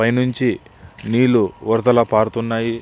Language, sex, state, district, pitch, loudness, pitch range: Telugu, male, Andhra Pradesh, Visakhapatnam, 115 Hz, -17 LUFS, 115-125 Hz